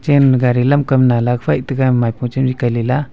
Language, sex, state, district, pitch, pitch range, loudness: Wancho, male, Arunachal Pradesh, Longding, 130 Hz, 120-135 Hz, -15 LUFS